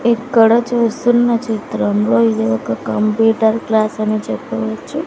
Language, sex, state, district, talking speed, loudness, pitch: Telugu, female, Andhra Pradesh, Sri Satya Sai, 105 wpm, -15 LUFS, 220 Hz